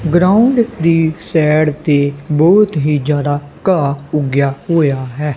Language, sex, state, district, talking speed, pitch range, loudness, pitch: Punjabi, male, Punjab, Kapurthala, 125 wpm, 145-170 Hz, -14 LUFS, 150 Hz